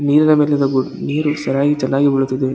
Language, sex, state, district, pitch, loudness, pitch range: Kannada, male, Karnataka, Gulbarga, 140 Hz, -16 LUFS, 135-150 Hz